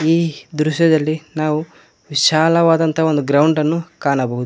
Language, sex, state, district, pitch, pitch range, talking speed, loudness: Kannada, male, Karnataka, Koppal, 155 Hz, 150-160 Hz, 105 wpm, -16 LUFS